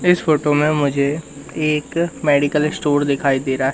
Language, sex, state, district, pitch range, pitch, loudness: Hindi, male, Madhya Pradesh, Katni, 140-155 Hz, 145 Hz, -18 LUFS